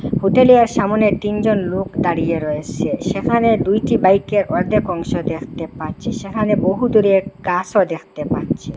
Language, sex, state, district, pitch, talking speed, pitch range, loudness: Bengali, female, Assam, Hailakandi, 200 Hz, 130 wpm, 180-215 Hz, -17 LUFS